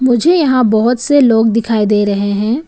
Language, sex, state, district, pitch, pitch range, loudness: Hindi, female, Arunachal Pradesh, Papum Pare, 230 Hz, 215-260 Hz, -12 LUFS